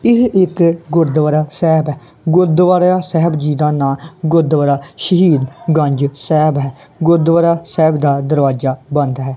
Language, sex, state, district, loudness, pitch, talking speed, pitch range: Punjabi, female, Punjab, Kapurthala, -14 LUFS, 155 Hz, 135 wpm, 140-170 Hz